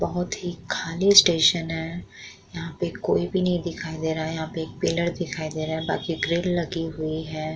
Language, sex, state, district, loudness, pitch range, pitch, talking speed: Hindi, female, Uttar Pradesh, Muzaffarnagar, -24 LUFS, 160-175 Hz, 165 Hz, 215 wpm